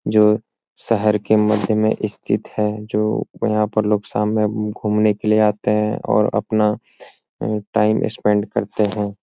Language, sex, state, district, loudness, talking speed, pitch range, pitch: Hindi, male, Bihar, Jahanabad, -19 LUFS, 160 wpm, 105-110 Hz, 105 Hz